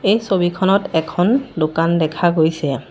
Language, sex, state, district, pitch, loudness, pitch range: Assamese, female, Assam, Sonitpur, 175 Hz, -17 LUFS, 160-195 Hz